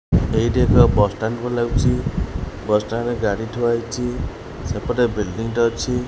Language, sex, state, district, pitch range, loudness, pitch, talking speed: Odia, male, Odisha, Khordha, 105-120 Hz, -20 LUFS, 115 Hz, 160 wpm